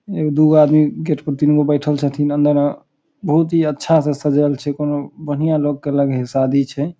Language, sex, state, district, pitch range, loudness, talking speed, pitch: Maithili, male, Bihar, Samastipur, 145-155 Hz, -16 LUFS, 230 wpm, 150 Hz